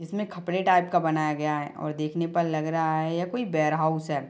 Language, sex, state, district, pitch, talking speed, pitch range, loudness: Hindi, female, Chhattisgarh, Bilaspur, 160 Hz, 235 wpm, 155-175 Hz, -26 LUFS